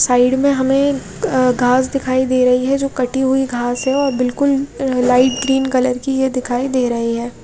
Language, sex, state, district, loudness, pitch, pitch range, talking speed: Hindi, female, Odisha, Khordha, -16 LUFS, 255 Hz, 250-270 Hz, 195 wpm